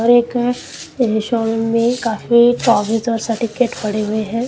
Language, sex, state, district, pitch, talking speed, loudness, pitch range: Hindi, female, Punjab, Kapurthala, 230 Hz, 145 wpm, -17 LUFS, 225-240 Hz